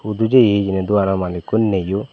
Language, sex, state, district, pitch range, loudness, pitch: Chakma, male, Tripura, Dhalai, 95-110 Hz, -17 LUFS, 100 Hz